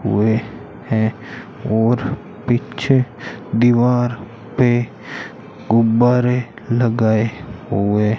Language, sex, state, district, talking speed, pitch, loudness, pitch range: Hindi, male, Rajasthan, Bikaner, 75 wpm, 120 Hz, -18 LUFS, 110-125 Hz